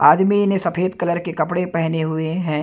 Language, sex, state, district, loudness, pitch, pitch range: Hindi, male, Chhattisgarh, Raipur, -19 LUFS, 170 Hz, 160-180 Hz